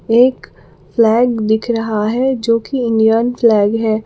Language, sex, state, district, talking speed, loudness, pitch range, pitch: Hindi, female, Jharkhand, Palamu, 150 wpm, -14 LUFS, 220-240 Hz, 230 Hz